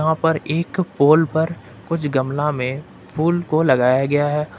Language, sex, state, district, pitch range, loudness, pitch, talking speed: Hindi, male, Jharkhand, Ranchi, 140-165 Hz, -19 LUFS, 155 Hz, 155 wpm